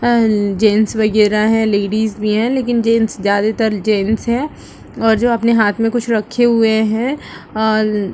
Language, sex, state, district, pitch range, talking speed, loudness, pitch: Hindi, female, Chhattisgarh, Raigarh, 215-230 Hz, 155 wpm, -15 LUFS, 220 Hz